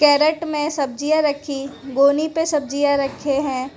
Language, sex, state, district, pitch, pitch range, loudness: Hindi, female, Gujarat, Valsad, 285 Hz, 275-300 Hz, -20 LUFS